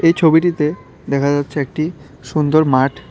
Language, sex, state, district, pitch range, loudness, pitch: Bengali, male, Tripura, West Tripura, 140-160 Hz, -16 LUFS, 150 Hz